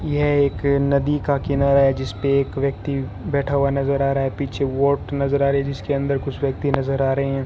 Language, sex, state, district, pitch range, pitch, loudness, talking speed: Hindi, male, Rajasthan, Bikaner, 135-140 Hz, 140 Hz, -21 LUFS, 235 wpm